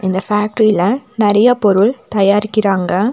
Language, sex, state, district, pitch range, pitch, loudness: Tamil, female, Tamil Nadu, Nilgiris, 195-220 Hz, 210 Hz, -14 LUFS